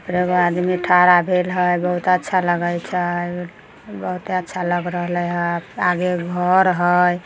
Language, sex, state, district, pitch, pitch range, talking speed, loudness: Maithili, female, Bihar, Samastipur, 180 Hz, 175-180 Hz, 140 wpm, -19 LUFS